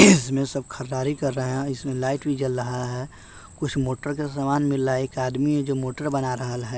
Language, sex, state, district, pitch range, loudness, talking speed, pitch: Hindi, male, Bihar, West Champaran, 130-140 Hz, -25 LUFS, 240 wpm, 135 Hz